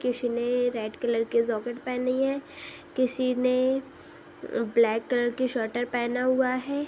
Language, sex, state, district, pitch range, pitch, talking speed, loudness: Hindi, female, Bihar, Saharsa, 235-255 Hz, 250 Hz, 155 wpm, -27 LUFS